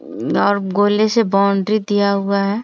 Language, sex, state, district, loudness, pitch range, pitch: Hindi, female, Bihar, Jamui, -16 LUFS, 200-210 Hz, 200 Hz